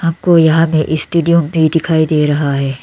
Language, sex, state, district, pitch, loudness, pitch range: Hindi, female, Arunachal Pradesh, Lower Dibang Valley, 160 Hz, -13 LUFS, 150-165 Hz